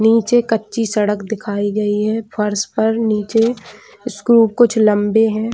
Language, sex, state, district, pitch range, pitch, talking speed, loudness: Hindi, female, Chhattisgarh, Bilaspur, 210-225 Hz, 220 Hz, 130 wpm, -16 LUFS